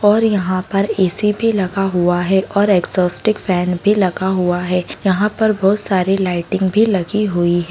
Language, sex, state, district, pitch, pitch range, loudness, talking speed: Hindi, female, Bihar, Saharsa, 190 Hz, 180-210 Hz, -16 LUFS, 180 wpm